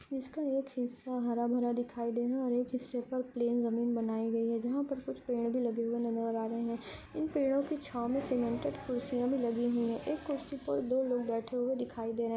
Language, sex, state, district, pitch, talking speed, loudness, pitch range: Hindi, female, Andhra Pradesh, Anantapur, 245 Hz, 245 wpm, -34 LUFS, 235-260 Hz